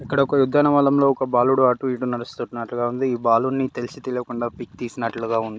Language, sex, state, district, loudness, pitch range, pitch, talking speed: Telugu, male, Andhra Pradesh, Srikakulam, -21 LUFS, 120-135 Hz, 125 Hz, 170 wpm